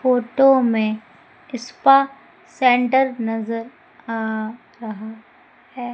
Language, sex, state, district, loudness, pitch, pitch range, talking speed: Hindi, female, Madhya Pradesh, Umaria, -19 LUFS, 245 Hz, 225-265 Hz, 80 wpm